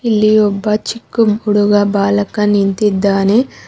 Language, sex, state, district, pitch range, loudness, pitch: Kannada, female, Karnataka, Bangalore, 205-215 Hz, -13 LUFS, 210 Hz